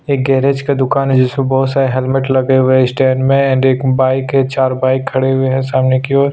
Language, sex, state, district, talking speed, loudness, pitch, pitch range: Hindi, male, Chhattisgarh, Sukma, 245 wpm, -13 LUFS, 130 Hz, 130-135 Hz